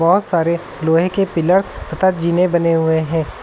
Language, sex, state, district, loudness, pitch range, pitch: Hindi, male, Uttar Pradesh, Lucknow, -16 LUFS, 165-185 Hz, 170 Hz